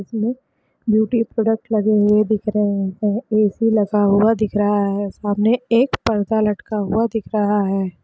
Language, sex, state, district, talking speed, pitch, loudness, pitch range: Hindi, female, Chhattisgarh, Sukma, 170 wpm, 215 Hz, -18 LUFS, 205-225 Hz